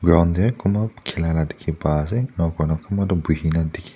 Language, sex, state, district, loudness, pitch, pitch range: Nagamese, male, Nagaland, Dimapur, -22 LUFS, 85 Hz, 80-100 Hz